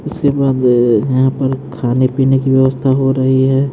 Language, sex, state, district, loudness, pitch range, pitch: Hindi, male, Haryana, Jhajjar, -13 LUFS, 130-135 Hz, 130 Hz